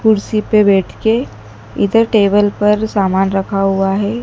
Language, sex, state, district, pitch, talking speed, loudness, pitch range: Hindi, female, Madhya Pradesh, Dhar, 205 Hz, 155 wpm, -14 LUFS, 195-215 Hz